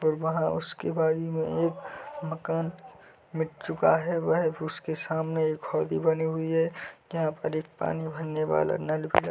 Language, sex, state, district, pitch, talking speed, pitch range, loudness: Hindi, male, Chhattisgarh, Bilaspur, 160 Hz, 175 wpm, 155-165 Hz, -29 LUFS